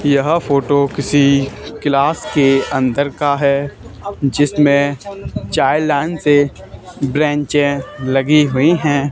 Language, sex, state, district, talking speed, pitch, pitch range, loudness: Hindi, male, Haryana, Charkhi Dadri, 105 wpm, 140 Hz, 140-145 Hz, -15 LUFS